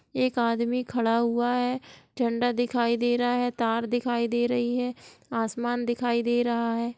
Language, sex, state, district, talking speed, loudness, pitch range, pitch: Hindi, female, Bihar, Gopalganj, 165 wpm, -26 LUFS, 235-245 Hz, 240 Hz